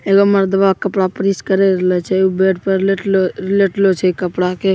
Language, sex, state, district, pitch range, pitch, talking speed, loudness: Hindi, female, Bihar, Begusarai, 185-195 Hz, 190 Hz, 190 wpm, -15 LUFS